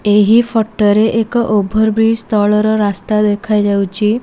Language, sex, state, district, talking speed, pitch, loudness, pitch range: Odia, female, Odisha, Malkangiri, 125 wpm, 215 Hz, -13 LUFS, 205-225 Hz